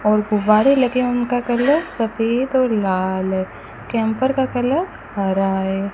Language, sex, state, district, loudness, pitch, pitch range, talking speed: Hindi, female, Rajasthan, Bikaner, -19 LUFS, 225 Hz, 200-255 Hz, 140 wpm